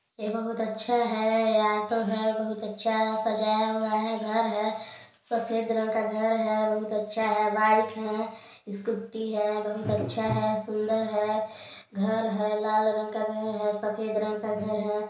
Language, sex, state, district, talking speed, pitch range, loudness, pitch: Hindi, male, Chhattisgarh, Balrampur, 165 wpm, 215-220 Hz, -28 LUFS, 215 Hz